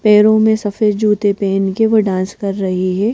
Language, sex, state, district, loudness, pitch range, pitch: Hindi, female, Madhya Pradesh, Bhopal, -14 LUFS, 195-215 Hz, 205 Hz